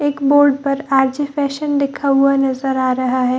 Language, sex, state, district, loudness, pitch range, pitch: Hindi, female, Bihar, Samastipur, -16 LUFS, 265-285 Hz, 275 Hz